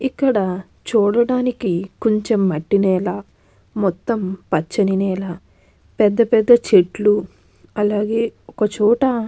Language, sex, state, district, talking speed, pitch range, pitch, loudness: Telugu, female, Andhra Pradesh, Krishna, 80 wpm, 190-230 Hz, 210 Hz, -18 LUFS